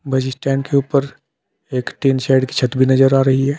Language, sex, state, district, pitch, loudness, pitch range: Hindi, male, Uttar Pradesh, Saharanpur, 135 Hz, -16 LUFS, 130-135 Hz